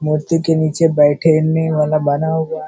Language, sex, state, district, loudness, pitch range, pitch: Hindi, male, Uttar Pradesh, Hamirpur, -15 LUFS, 150-160 Hz, 155 Hz